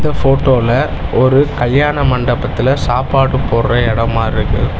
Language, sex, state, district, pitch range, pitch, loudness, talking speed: Tamil, male, Tamil Nadu, Chennai, 115-135 Hz, 125 Hz, -13 LUFS, 110 wpm